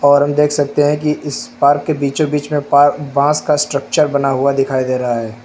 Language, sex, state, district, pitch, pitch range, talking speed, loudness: Hindi, male, Uttar Pradesh, Lucknow, 145 Hz, 140-150 Hz, 240 wpm, -15 LUFS